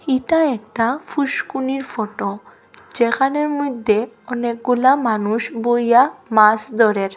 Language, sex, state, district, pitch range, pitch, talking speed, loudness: Bengali, female, Assam, Hailakandi, 220-270 Hz, 240 Hz, 90 wpm, -18 LUFS